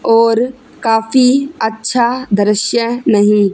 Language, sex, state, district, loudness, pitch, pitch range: Hindi, female, Haryana, Charkhi Dadri, -13 LUFS, 230 Hz, 220-255 Hz